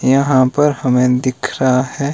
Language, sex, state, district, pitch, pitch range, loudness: Hindi, male, Himachal Pradesh, Shimla, 130 Hz, 125-140 Hz, -15 LUFS